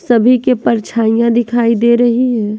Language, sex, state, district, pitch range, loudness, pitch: Hindi, female, Bihar, West Champaran, 230-245 Hz, -12 LUFS, 235 Hz